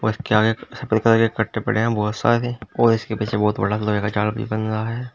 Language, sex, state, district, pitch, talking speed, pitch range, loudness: Hindi, male, Uttar Pradesh, Shamli, 110 Hz, 220 wpm, 105-115 Hz, -21 LUFS